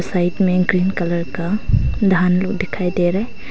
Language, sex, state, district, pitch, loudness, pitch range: Hindi, female, Arunachal Pradesh, Longding, 180 Hz, -18 LUFS, 175-195 Hz